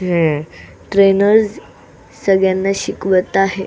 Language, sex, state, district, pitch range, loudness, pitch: Marathi, female, Maharashtra, Solapur, 185-195 Hz, -15 LUFS, 195 Hz